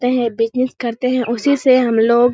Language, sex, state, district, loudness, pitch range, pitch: Hindi, female, Bihar, Kishanganj, -16 LUFS, 235-255 Hz, 245 Hz